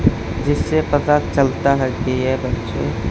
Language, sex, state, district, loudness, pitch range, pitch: Hindi, male, Haryana, Charkhi Dadri, -19 LUFS, 130-145 Hz, 130 Hz